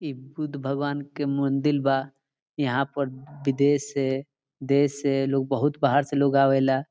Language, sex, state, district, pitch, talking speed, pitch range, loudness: Bhojpuri, male, Bihar, Saran, 140 Hz, 155 wpm, 135-145 Hz, -25 LUFS